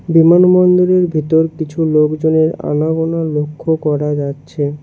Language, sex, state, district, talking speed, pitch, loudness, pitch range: Bengali, male, West Bengal, Cooch Behar, 100 wpm, 160 Hz, -14 LUFS, 150-165 Hz